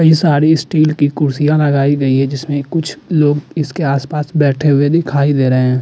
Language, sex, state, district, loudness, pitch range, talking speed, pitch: Hindi, male, Uttarakhand, Tehri Garhwal, -14 LUFS, 140-155 Hz, 195 wpm, 145 Hz